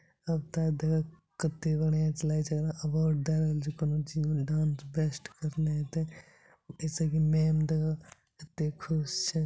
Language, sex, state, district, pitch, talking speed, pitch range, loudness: Maithili, male, Bihar, Supaul, 155 Hz, 135 wpm, 155-160 Hz, -31 LUFS